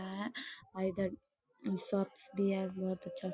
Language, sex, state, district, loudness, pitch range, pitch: Hindi, female, Bihar, Darbhanga, -38 LUFS, 185-200 Hz, 190 Hz